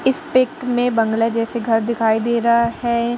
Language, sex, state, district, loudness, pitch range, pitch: Hindi, female, Uttar Pradesh, Jalaun, -18 LUFS, 230-245 Hz, 235 Hz